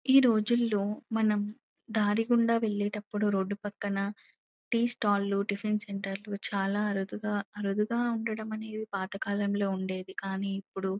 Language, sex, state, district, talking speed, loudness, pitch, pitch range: Telugu, female, Telangana, Nalgonda, 125 wpm, -31 LUFS, 205 Hz, 200-220 Hz